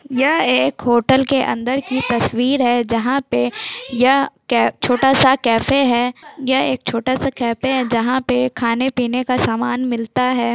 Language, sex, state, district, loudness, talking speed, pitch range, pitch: Hindi, female, Chhattisgarh, Sukma, -17 LUFS, 160 wpm, 235-265 Hz, 255 Hz